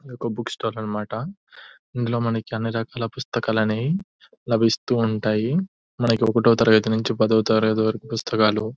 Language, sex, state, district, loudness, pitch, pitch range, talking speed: Telugu, female, Telangana, Nalgonda, -22 LUFS, 115 Hz, 110-120 Hz, 130 wpm